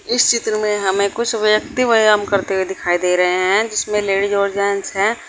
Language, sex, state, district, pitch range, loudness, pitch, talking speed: Hindi, female, Uttar Pradesh, Saharanpur, 195-220 Hz, -17 LUFS, 205 Hz, 205 wpm